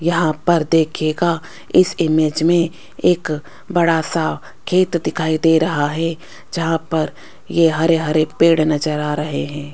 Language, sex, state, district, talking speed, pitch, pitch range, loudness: Hindi, female, Rajasthan, Jaipur, 150 wpm, 160 Hz, 155-170 Hz, -18 LUFS